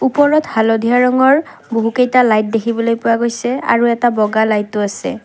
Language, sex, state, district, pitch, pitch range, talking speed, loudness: Assamese, female, Assam, Kamrup Metropolitan, 235 Hz, 225-250 Hz, 160 wpm, -14 LUFS